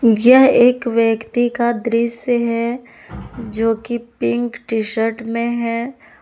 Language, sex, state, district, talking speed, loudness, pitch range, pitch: Hindi, female, Jharkhand, Palamu, 125 wpm, -17 LUFS, 225-240 Hz, 235 Hz